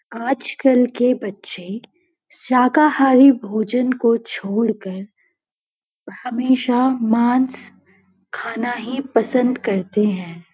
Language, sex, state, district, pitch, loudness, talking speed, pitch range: Hindi, female, Uttarakhand, Uttarkashi, 240 Hz, -18 LUFS, 80 wpm, 210-255 Hz